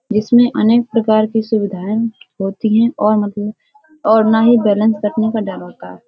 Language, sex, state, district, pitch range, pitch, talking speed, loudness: Hindi, female, Uttar Pradesh, Hamirpur, 205-230 Hz, 220 Hz, 180 wpm, -15 LUFS